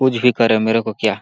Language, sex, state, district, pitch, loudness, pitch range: Hindi, male, Chhattisgarh, Sarguja, 115 Hz, -16 LUFS, 110-125 Hz